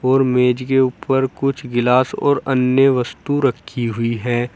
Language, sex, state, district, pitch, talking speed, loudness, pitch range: Hindi, male, Uttar Pradesh, Saharanpur, 130 Hz, 155 wpm, -17 LUFS, 120-135 Hz